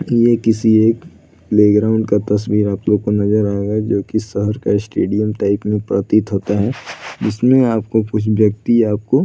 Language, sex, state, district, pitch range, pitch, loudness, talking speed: Hindi, male, Bihar, Saran, 105-110 Hz, 105 Hz, -16 LUFS, 180 wpm